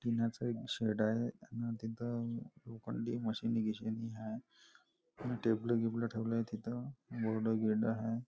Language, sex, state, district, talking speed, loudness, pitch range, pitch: Marathi, male, Maharashtra, Nagpur, 140 wpm, -38 LUFS, 110-120 Hz, 115 Hz